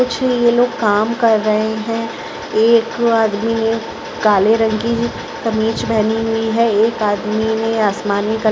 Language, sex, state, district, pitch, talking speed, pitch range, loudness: Hindi, female, Chhattisgarh, Raigarh, 225 Hz, 160 wpm, 215-230 Hz, -16 LUFS